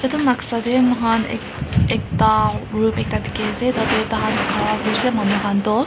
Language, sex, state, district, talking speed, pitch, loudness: Nagamese, female, Nagaland, Kohima, 205 wpm, 220 Hz, -18 LUFS